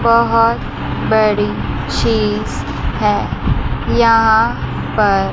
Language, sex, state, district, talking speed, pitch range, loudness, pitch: Hindi, female, Chandigarh, Chandigarh, 80 wpm, 210-230 Hz, -15 LUFS, 225 Hz